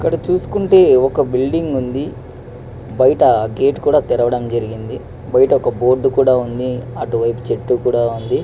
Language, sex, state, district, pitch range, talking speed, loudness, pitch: Telugu, male, Andhra Pradesh, Krishna, 120-135 Hz, 130 wpm, -15 LUFS, 125 Hz